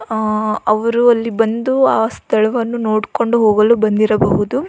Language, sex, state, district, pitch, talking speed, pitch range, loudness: Kannada, female, Karnataka, Belgaum, 220 Hz, 130 wpm, 215-235 Hz, -15 LUFS